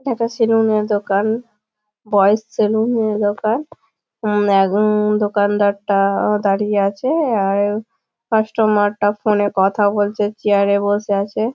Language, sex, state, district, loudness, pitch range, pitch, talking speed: Bengali, female, West Bengal, Malda, -17 LUFS, 205-220 Hz, 210 Hz, 90 wpm